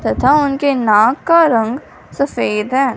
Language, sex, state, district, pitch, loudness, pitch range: Hindi, female, Punjab, Fazilka, 270 Hz, -14 LUFS, 225-285 Hz